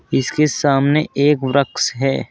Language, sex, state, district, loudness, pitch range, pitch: Hindi, male, Uttar Pradesh, Saharanpur, -17 LUFS, 135-150 Hz, 140 Hz